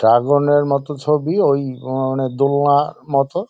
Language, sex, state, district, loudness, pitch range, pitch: Bengali, male, West Bengal, Jalpaiguri, -17 LUFS, 135-145 Hz, 140 Hz